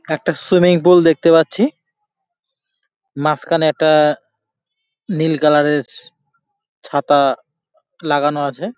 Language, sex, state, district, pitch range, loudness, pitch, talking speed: Bengali, male, West Bengal, Jalpaiguri, 150-235 Hz, -15 LUFS, 165 Hz, 90 wpm